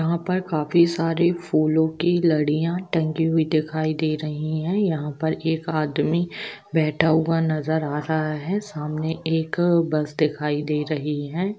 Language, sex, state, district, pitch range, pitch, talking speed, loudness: Hindi, female, Jharkhand, Sahebganj, 155-165 Hz, 160 Hz, 155 wpm, -23 LUFS